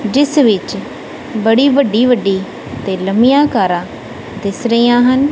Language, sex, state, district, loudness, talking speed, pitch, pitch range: Punjabi, female, Punjab, Kapurthala, -13 LUFS, 125 wpm, 230 Hz, 195-260 Hz